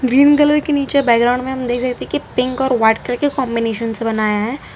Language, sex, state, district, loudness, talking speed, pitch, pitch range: Hindi, female, Gujarat, Valsad, -16 LUFS, 250 wpm, 250 Hz, 230-275 Hz